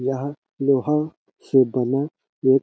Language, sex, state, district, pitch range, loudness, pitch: Hindi, male, Chhattisgarh, Balrampur, 130-145 Hz, -22 LUFS, 135 Hz